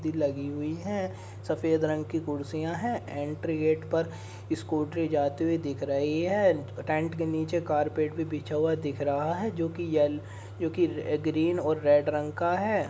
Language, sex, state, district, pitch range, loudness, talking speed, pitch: Hindi, male, Uttar Pradesh, Muzaffarnagar, 145-165 Hz, -29 LUFS, 175 wpm, 155 Hz